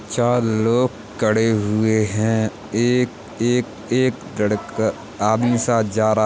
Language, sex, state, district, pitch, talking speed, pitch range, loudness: Hindi, male, Uttar Pradesh, Hamirpur, 110 Hz, 135 wpm, 105-120 Hz, -20 LUFS